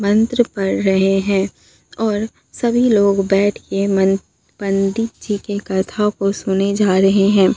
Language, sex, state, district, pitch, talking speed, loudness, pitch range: Hindi, female, Bihar, Katihar, 200 Hz, 150 wpm, -17 LUFS, 195-210 Hz